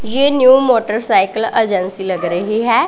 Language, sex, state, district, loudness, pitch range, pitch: Hindi, female, Punjab, Pathankot, -14 LUFS, 190-240 Hz, 220 Hz